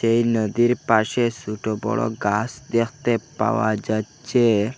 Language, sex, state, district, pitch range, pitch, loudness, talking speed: Bengali, male, Assam, Hailakandi, 110-120 Hz, 115 Hz, -22 LUFS, 115 wpm